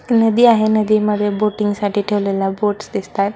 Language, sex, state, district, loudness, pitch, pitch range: Marathi, female, Maharashtra, Solapur, -16 LUFS, 210 Hz, 205-215 Hz